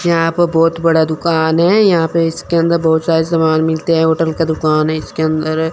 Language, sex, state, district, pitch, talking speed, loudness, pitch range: Hindi, male, Chandigarh, Chandigarh, 160 Hz, 220 wpm, -14 LUFS, 160-165 Hz